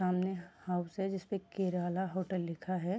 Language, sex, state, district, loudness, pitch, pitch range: Hindi, female, Bihar, Sitamarhi, -37 LUFS, 185 Hz, 180-190 Hz